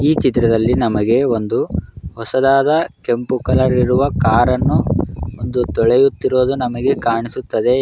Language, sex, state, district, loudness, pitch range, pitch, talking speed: Kannada, male, Karnataka, Raichur, -16 LUFS, 115-135 Hz, 125 Hz, 115 wpm